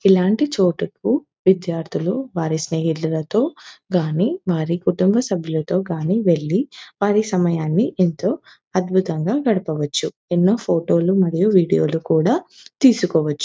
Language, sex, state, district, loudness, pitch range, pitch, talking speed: Telugu, female, Telangana, Nalgonda, -19 LUFS, 165-205 Hz, 185 Hz, 105 wpm